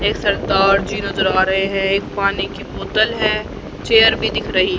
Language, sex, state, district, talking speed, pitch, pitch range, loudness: Hindi, female, Haryana, Charkhi Dadri, 200 wpm, 200 Hz, 195-215 Hz, -16 LUFS